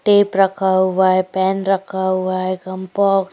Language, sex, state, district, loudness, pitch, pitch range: Hindi, female, Maharashtra, Chandrapur, -17 LUFS, 190 Hz, 185-195 Hz